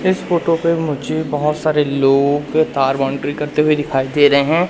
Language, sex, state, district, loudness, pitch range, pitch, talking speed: Hindi, male, Madhya Pradesh, Katni, -16 LUFS, 140-160 Hz, 150 Hz, 190 wpm